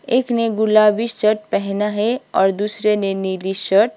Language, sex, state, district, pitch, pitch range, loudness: Hindi, female, Sikkim, Gangtok, 210 Hz, 195-225 Hz, -17 LUFS